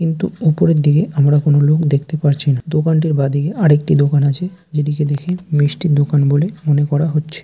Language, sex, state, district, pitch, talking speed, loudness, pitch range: Bengali, male, West Bengal, Jalpaiguri, 150 Hz, 175 wpm, -15 LUFS, 145-160 Hz